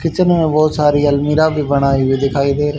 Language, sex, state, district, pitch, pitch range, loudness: Hindi, male, Haryana, Charkhi Dadri, 145 Hz, 140-155 Hz, -14 LUFS